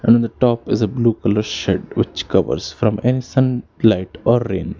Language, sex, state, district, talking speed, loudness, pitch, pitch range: English, male, Karnataka, Bangalore, 190 wpm, -18 LUFS, 115 Hz, 105-120 Hz